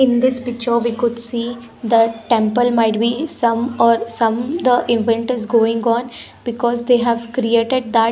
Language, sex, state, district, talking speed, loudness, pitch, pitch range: English, female, Punjab, Pathankot, 175 wpm, -17 LUFS, 235 Hz, 230-245 Hz